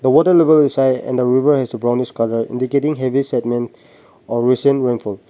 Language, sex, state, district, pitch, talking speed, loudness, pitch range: English, male, Nagaland, Dimapur, 130 Hz, 180 wpm, -16 LUFS, 120-140 Hz